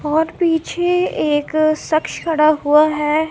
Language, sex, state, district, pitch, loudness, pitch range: Hindi, female, Punjab, Kapurthala, 310 Hz, -17 LUFS, 305-325 Hz